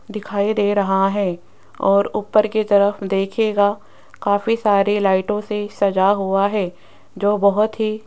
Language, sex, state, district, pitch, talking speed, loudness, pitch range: Hindi, female, Rajasthan, Jaipur, 205 Hz, 150 wpm, -18 LUFS, 195-210 Hz